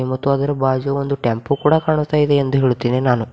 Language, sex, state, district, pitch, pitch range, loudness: Kannada, female, Karnataka, Bidar, 140 Hz, 130-145 Hz, -17 LUFS